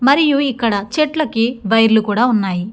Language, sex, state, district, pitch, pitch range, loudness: Telugu, female, Andhra Pradesh, Chittoor, 230 Hz, 220-280 Hz, -15 LUFS